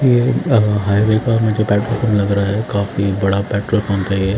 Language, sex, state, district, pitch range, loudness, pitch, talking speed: Hindi, male, Punjab, Fazilka, 100-110 Hz, -16 LUFS, 105 Hz, 205 wpm